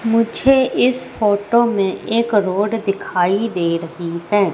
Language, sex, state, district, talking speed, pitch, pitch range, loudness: Hindi, female, Madhya Pradesh, Katni, 130 wpm, 205 Hz, 185-230 Hz, -17 LUFS